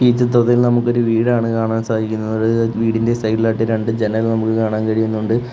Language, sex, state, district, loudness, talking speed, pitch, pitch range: Malayalam, male, Kerala, Kollam, -17 LUFS, 140 wpm, 115 Hz, 110-120 Hz